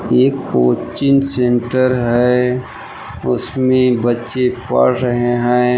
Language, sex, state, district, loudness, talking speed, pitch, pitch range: Hindi, male, Jharkhand, Palamu, -15 LUFS, 95 wpm, 125 Hz, 120-130 Hz